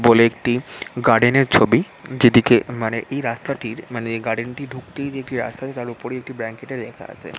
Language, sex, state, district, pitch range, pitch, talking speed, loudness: Bengali, male, West Bengal, Jhargram, 115-130 Hz, 120 Hz, 205 wpm, -20 LUFS